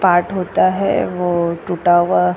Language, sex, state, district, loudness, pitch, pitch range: Hindi, female, Uttar Pradesh, Jyotiba Phule Nagar, -16 LUFS, 175 Hz, 170-185 Hz